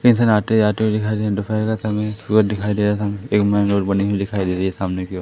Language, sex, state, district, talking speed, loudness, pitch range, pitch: Hindi, male, Madhya Pradesh, Katni, 345 wpm, -19 LUFS, 100-110 Hz, 105 Hz